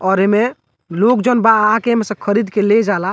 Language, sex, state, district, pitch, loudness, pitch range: Bhojpuri, male, Bihar, Muzaffarpur, 210 Hz, -14 LUFS, 195-225 Hz